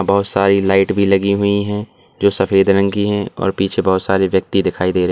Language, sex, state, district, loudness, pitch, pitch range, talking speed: Hindi, male, Uttar Pradesh, Lalitpur, -15 LUFS, 100 Hz, 95-100 Hz, 235 wpm